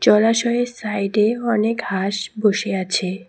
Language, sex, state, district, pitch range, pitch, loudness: Bengali, female, West Bengal, Cooch Behar, 195-230 Hz, 210 Hz, -20 LUFS